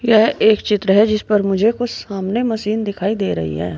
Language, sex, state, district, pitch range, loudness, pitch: Hindi, female, Uttar Pradesh, Saharanpur, 195-220 Hz, -17 LUFS, 210 Hz